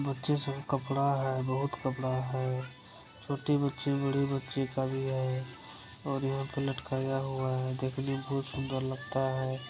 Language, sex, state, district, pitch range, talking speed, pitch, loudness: Hindi, male, Bihar, Saran, 130-140 Hz, 160 wpm, 135 Hz, -33 LUFS